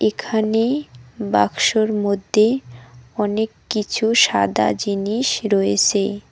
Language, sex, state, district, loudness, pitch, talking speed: Bengali, female, West Bengal, Cooch Behar, -19 LUFS, 205 Hz, 65 wpm